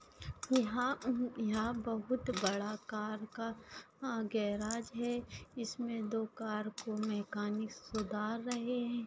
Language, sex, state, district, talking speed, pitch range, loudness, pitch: Hindi, female, Maharashtra, Solapur, 110 wpm, 215-240 Hz, -38 LUFS, 225 Hz